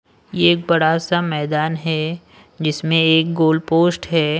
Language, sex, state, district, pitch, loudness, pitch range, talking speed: Hindi, male, Punjab, Pathankot, 160 Hz, -17 LUFS, 155-165 Hz, 150 wpm